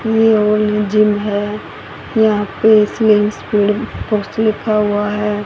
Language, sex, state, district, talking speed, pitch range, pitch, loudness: Hindi, female, Haryana, Rohtak, 130 wpm, 210-215 Hz, 210 Hz, -15 LUFS